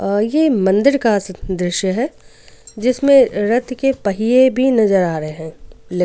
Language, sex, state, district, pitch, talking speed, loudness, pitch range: Hindi, female, Goa, North and South Goa, 220 Hz, 140 wpm, -16 LUFS, 190-260 Hz